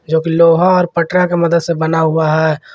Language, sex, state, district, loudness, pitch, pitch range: Hindi, male, Jharkhand, Garhwa, -13 LUFS, 165 Hz, 160-170 Hz